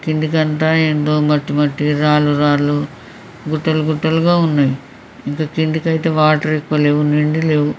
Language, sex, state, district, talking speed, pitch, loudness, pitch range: Telugu, male, Andhra Pradesh, Srikakulam, 115 wpm, 155 Hz, -16 LUFS, 150-160 Hz